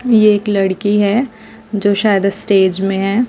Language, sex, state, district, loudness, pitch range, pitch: Hindi, female, Chhattisgarh, Raipur, -14 LUFS, 195-220 Hz, 205 Hz